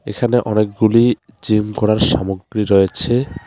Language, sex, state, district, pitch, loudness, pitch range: Bengali, male, West Bengal, Alipurduar, 105 Hz, -16 LUFS, 105-120 Hz